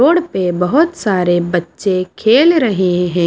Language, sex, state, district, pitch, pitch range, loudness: Hindi, female, Maharashtra, Washim, 185 Hz, 180-265 Hz, -14 LUFS